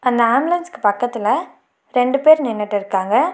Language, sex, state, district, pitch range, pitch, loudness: Tamil, female, Tamil Nadu, Nilgiris, 210-285 Hz, 245 Hz, -17 LUFS